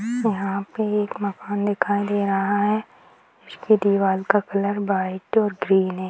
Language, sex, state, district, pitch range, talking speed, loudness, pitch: Hindi, female, Bihar, Jahanabad, 195-210 Hz, 165 wpm, -22 LUFS, 200 Hz